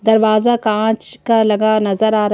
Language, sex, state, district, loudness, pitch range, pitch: Hindi, female, Madhya Pradesh, Bhopal, -15 LUFS, 215-225 Hz, 220 Hz